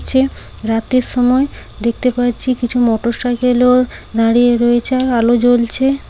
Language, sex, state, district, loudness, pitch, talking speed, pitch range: Bengali, female, West Bengal, Paschim Medinipur, -14 LUFS, 245 Hz, 130 wpm, 235-255 Hz